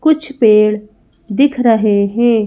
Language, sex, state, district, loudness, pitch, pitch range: Hindi, female, Madhya Pradesh, Bhopal, -12 LUFS, 225 Hz, 210-255 Hz